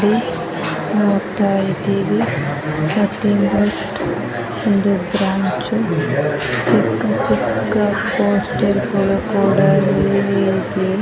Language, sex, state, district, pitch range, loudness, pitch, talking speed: Kannada, female, Karnataka, Bellary, 190-205 Hz, -17 LUFS, 195 Hz, 65 wpm